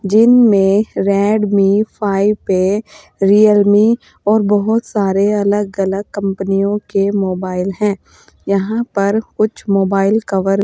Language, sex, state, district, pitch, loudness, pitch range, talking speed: Hindi, female, Uttar Pradesh, Saharanpur, 200 Hz, -14 LUFS, 195-210 Hz, 120 wpm